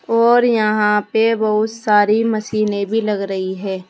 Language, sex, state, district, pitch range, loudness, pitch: Hindi, female, Uttar Pradesh, Saharanpur, 205-225 Hz, -16 LUFS, 215 Hz